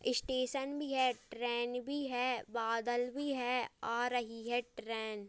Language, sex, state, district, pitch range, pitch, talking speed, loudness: Hindi, male, Uttarakhand, Tehri Garhwal, 235-255 Hz, 245 Hz, 160 wpm, -37 LUFS